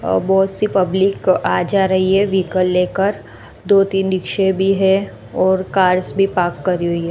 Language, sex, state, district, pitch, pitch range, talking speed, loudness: Hindi, female, Gujarat, Gandhinagar, 190 Hz, 180-195 Hz, 185 wpm, -16 LUFS